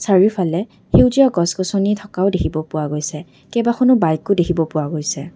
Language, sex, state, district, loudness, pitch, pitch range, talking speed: Assamese, female, Assam, Kamrup Metropolitan, -17 LUFS, 180 Hz, 155-205 Hz, 155 wpm